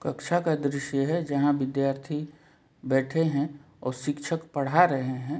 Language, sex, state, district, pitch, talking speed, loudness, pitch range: Hindi, male, Jharkhand, Jamtara, 145 Hz, 145 wpm, -27 LUFS, 135-155 Hz